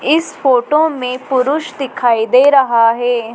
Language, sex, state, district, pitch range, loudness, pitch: Hindi, female, Madhya Pradesh, Dhar, 240-280 Hz, -13 LUFS, 260 Hz